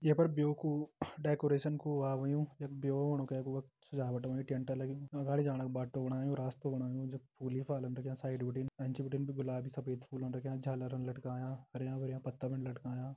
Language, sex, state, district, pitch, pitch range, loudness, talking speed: Garhwali, male, Uttarakhand, Tehri Garhwal, 135 Hz, 130-140 Hz, -39 LUFS, 205 wpm